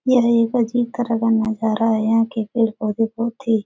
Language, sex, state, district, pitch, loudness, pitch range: Hindi, female, Bihar, Jahanabad, 225 Hz, -19 LUFS, 220-235 Hz